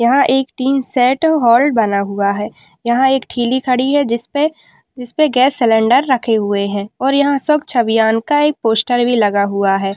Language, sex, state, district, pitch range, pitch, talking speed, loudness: Hindi, female, Bihar, Kishanganj, 225-270 Hz, 245 Hz, 195 wpm, -14 LUFS